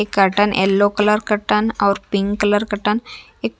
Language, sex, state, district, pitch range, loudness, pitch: Hindi, female, Chhattisgarh, Raipur, 200-210 Hz, -18 LUFS, 205 Hz